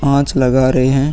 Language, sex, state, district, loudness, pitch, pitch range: Hindi, female, Bihar, Vaishali, -13 LUFS, 135 Hz, 130-140 Hz